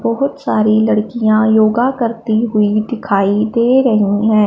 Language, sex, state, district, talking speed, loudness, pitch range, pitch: Hindi, female, Punjab, Fazilka, 135 wpm, -14 LUFS, 215-235 Hz, 220 Hz